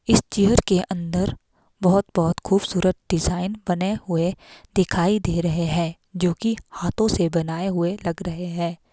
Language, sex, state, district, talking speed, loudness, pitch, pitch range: Hindi, female, Himachal Pradesh, Shimla, 155 wpm, -22 LUFS, 180 Hz, 170-195 Hz